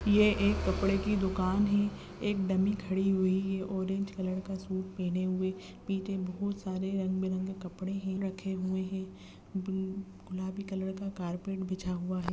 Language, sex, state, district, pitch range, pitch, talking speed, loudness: Hindi, female, Bihar, Madhepura, 185-195 Hz, 190 Hz, 170 wpm, -33 LUFS